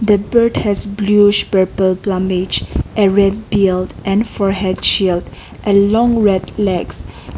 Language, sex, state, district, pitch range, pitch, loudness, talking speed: English, female, Nagaland, Kohima, 190-205 Hz, 200 Hz, -15 LUFS, 140 wpm